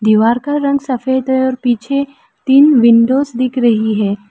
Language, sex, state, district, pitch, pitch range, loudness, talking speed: Hindi, female, Arunachal Pradesh, Lower Dibang Valley, 255 Hz, 230-275 Hz, -13 LUFS, 165 wpm